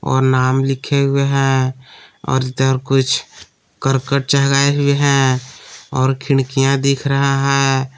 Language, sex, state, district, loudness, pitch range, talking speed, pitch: Hindi, male, Jharkhand, Palamu, -16 LUFS, 130-140 Hz, 120 wpm, 135 Hz